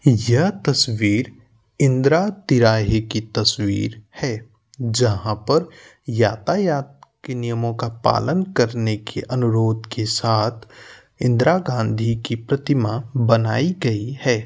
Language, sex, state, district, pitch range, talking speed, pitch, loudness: Bhojpuri, male, Uttar Pradesh, Gorakhpur, 110-130 Hz, 110 wpm, 120 Hz, -20 LUFS